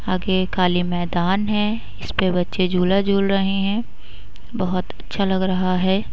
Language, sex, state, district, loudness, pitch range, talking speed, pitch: Hindi, female, Uttar Pradesh, Budaun, -21 LUFS, 185-195 Hz, 155 wpm, 190 Hz